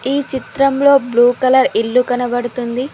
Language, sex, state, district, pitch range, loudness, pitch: Telugu, female, Telangana, Mahabubabad, 245-275 Hz, -14 LUFS, 255 Hz